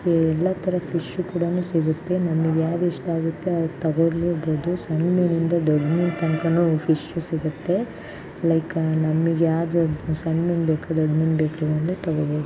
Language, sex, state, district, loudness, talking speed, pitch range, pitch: Kannada, female, Karnataka, Shimoga, -22 LUFS, 140 wpm, 160-170 Hz, 165 Hz